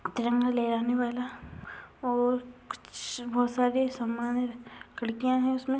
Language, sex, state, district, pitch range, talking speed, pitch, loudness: Hindi, female, Uttar Pradesh, Varanasi, 240-250 Hz, 115 wpm, 245 Hz, -29 LUFS